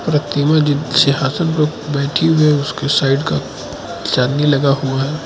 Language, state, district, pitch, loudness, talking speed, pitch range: Hindi, Arunachal Pradesh, Lower Dibang Valley, 145 Hz, -15 LUFS, 160 wpm, 140-155 Hz